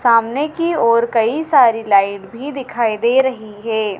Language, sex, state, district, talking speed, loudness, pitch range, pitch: Hindi, female, Madhya Pradesh, Dhar, 165 wpm, -16 LUFS, 220-265 Hz, 230 Hz